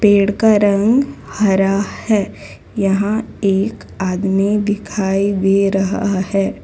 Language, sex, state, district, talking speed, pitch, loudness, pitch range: Hindi, female, Gujarat, Valsad, 110 wpm, 200 Hz, -16 LUFS, 195-210 Hz